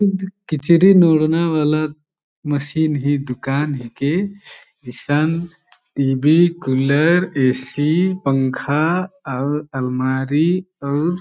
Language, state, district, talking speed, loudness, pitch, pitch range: Kurukh, Chhattisgarh, Jashpur, 80 wpm, -18 LUFS, 150 Hz, 135-170 Hz